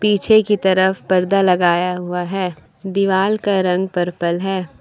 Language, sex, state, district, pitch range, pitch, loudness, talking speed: Hindi, female, Jharkhand, Palamu, 180-195 Hz, 190 Hz, -17 LUFS, 150 wpm